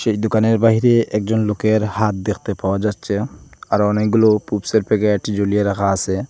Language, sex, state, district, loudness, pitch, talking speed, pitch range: Bengali, male, Assam, Hailakandi, -18 LUFS, 105 Hz, 145 wpm, 100-110 Hz